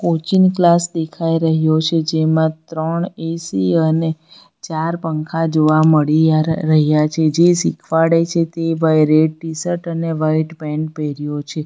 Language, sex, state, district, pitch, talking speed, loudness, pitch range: Gujarati, female, Gujarat, Valsad, 160 Hz, 145 wpm, -16 LUFS, 155-165 Hz